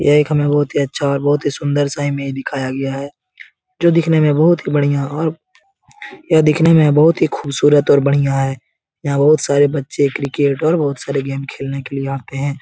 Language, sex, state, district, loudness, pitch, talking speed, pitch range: Hindi, male, Bihar, Jahanabad, -16 LUFS, 145 Hz, 215 wpm, 140-150 Hz